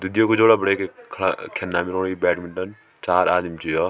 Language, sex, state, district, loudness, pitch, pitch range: Garhwali, male, Uttarakhand, Tehri Garhwal, -21 LUFS, 95 Hz, 90-100 Hz